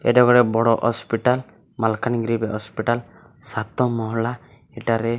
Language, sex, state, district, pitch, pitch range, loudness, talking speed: Odia, male, Odisha, Malkangiri, 115 Hz, 115-125 Hz, -21 LUFS, 115 wpm